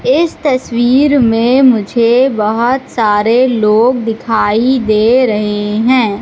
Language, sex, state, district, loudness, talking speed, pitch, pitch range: Hindi, female, Madhya Pradesh, Katni, -11 LUFS, 105 wpm, 235 Hz, 215-255 Hz